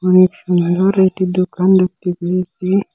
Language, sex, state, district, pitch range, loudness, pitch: Bengali, male, Assam, Hailakandi, 180-190 Hz, -15 LUFS, 185 Hz